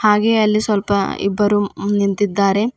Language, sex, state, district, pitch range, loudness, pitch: Kannada, female, Karnataka, Bidar, 200-210 Hz, -17 LUFS, 205 Hz